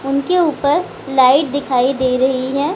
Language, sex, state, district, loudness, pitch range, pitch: Hindi, female, Bihar, Gaya, -15 LUFS, 260-285 Hz, 275 Hz